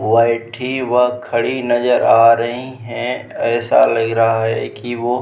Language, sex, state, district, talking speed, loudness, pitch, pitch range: Hindi, male, Bihar, Vaishali, 160 wpm, -16 LUFS, 120 Hz, 115-125 Hz